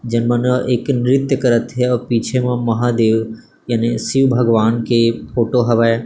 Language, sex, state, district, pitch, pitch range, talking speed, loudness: Chhattisgarhi, male, Chhattisgarh, Bilaspur, 120 Hz, 115-125 Hz, 170 wpm, -16 LUFS